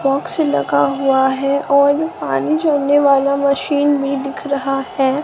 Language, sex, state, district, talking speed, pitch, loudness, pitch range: Hindi, male, Bihar, Katihar, 150 wpm, 275 Hz, -16 LUFS, 270-285 Hz